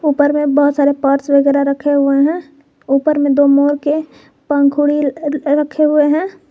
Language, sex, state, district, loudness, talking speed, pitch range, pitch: Hindi, female, Jharkhand, Garhwa, -14 LUFS, 165 wpm, 280-295 Hz, 290 Hz